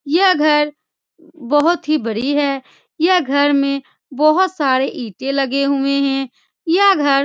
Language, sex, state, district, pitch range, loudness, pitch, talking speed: Hindi, female, Bihar, Supaul, 275-325 Hz, -16 LUFS, 285 Hz, 150 wpm